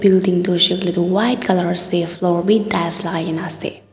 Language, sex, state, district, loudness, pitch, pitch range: Nagamese, female, Nagaland, Dimapur, -17 LUFS, 180 Hz, 170-185 Hz